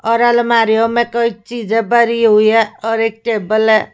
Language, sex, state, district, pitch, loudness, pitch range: Hindi, female, Haryana, Rohtak, 225 Hz, -13 LUFS, 220-235 Hz